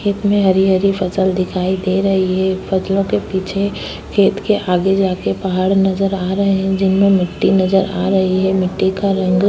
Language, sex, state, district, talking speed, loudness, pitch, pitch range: Hindi, female, Uttar Pradesh, Budaun, 190 wpm, -16 LUFS, 190 Hz, 185-195 Hz